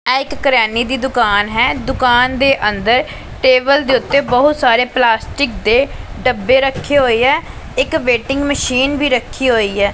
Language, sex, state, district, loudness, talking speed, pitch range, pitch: Punjabi, female, Punjab, Pathankot, -14 LUFS, 165 wpm, 235-275 Hz, 255 Hz